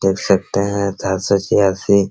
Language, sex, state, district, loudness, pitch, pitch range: Hindi, male, Bihar, Araria, -17 LUFS, 100 Hz, 95-100 Hz